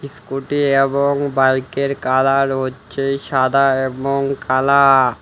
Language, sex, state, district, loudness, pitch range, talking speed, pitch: Bengali, male, West Bengal, Alipurduar, -16 LUFS, 130-140 Hz, 90 wpm, 135 Hz